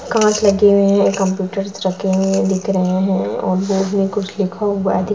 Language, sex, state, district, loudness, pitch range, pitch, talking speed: Hindi, female, Bihar, Gopalganj, -16 LUFS, 190-200 Hz, 195 Hz, 210 wpm